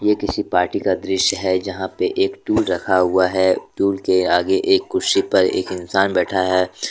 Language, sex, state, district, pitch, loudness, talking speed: Hindi, male, Jharkhand, Deoghar, 95 Hz, -18 LUFS, 200 wpm